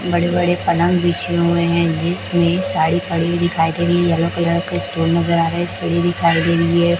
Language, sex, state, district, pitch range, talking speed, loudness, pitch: Hindi, male, Chhattisgarh, Raipur, 170-175 Hz, 240 wpm, -17 LUFS, 170 Hz